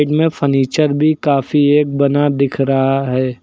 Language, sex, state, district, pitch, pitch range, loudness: Hindi, male, Uttar Pradesh, Lucknow, 140 Hz, 135-150 Hz, -14 LUFS